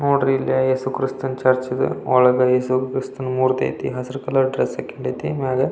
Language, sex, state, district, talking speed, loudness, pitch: Kannada, male, Karnataka, Belgaum, 180 wpm, -20 LUFS, 130 Hz